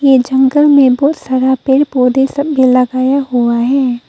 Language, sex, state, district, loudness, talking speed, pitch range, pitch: Hindi, female, Arunachal Pradesh, Papum Pare, -11 LUFS, 175 wpm, 255-275 Hz, 265 Hz